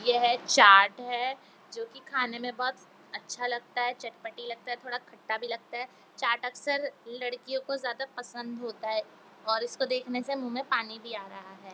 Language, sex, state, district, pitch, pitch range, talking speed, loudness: Hindi, female, Bihar, Jamui, 245 Hz, 230-255 Hz, 200 wpm, -29 LUFS